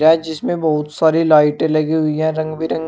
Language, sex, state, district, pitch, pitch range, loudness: Hindi, male, Uttar Pradesh, Shamli, 160 Hz, 155-160 Hz, -16 LUFS